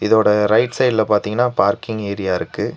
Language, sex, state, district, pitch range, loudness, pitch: Tamil, male, Tamil Nadu, Nilgiris, 100-120 Hz, -17 LUFS, 105 Hz